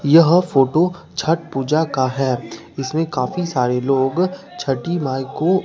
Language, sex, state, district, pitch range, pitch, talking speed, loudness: Hindi, male, Bihar, Katihar, 130-170 Hz, 150 Hz, 140 wpm, -19 LUFS